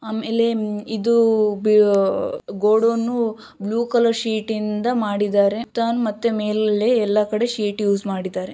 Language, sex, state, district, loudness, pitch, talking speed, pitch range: Kannada, female, Karnataka, Shimoga, -20 LUFS, 220 Hz, 135 wpm, 210-230 Hz